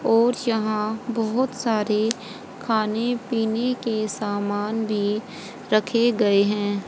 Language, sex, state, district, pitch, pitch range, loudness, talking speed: Hindi, female, Haryana, Jhajjar, 220 Hz, 210-235 Hz, -23 LUFS, 105 wpm